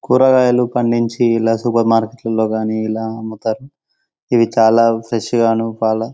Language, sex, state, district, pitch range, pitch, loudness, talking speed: Telugu, male, Telangana, Karimnagar, 110-120 Hz, 115 Hz, -16 LUFS, 105 wpm